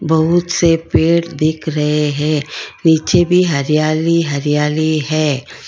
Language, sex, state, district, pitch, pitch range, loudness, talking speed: Hindi, female, Karnataka, Bangalore, 155 Hz, 150-165 Hz, -15 LUFS, 115 wpm